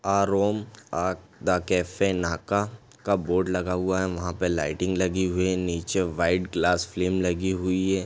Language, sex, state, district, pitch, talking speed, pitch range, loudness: Hindi, male, Chhattisgarh, Raigarh, 95 Hz, 180 wpm, 90-95 Hz, -26 LUFS